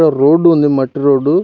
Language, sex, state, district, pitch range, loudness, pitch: Telugu, male, Telangana, Mahabubabad, 140-160 Hz, -11 LUFS, 145 Hz